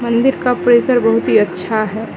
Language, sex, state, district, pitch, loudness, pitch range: Hindi, female, Mizoram, Aizawl, 230 Hz, -14 LUFS, 215-245 Hz